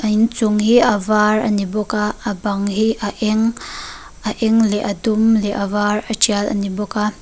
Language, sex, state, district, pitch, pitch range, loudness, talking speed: Mizo, female, Mizoram, Aizawl, 210 Hz, 205-220 Hz, -17 LUFS, 230 wpm